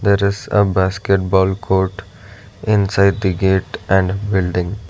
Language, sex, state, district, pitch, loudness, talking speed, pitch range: English, male, Karnataka, Bangalore, 95 Hz, -17 LUFS, 135 wpm, 95-100 Hz